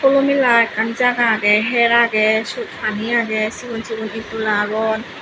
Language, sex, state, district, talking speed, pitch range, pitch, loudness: Chakma, female, Tripura, Unakoti, 150 wpm, 220-235 Hz, 225 Hz, -17 LUFS